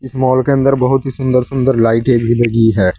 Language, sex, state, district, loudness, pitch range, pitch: Hindi, male, Uttar Pradesh, Saharanpur, -13 LUFS, 115-130 Hz, 130 Hz